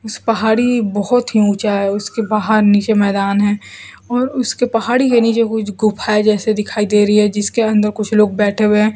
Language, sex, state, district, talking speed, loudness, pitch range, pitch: Hindi, female, Bihar, Kaimur, 195 wpm, -15 LUFS, 205-225 Hz, 215 Hz